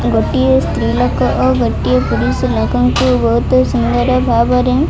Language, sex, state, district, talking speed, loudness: Odia, female, Odisha, Malkangiri, 145 wpm, -13 LUFS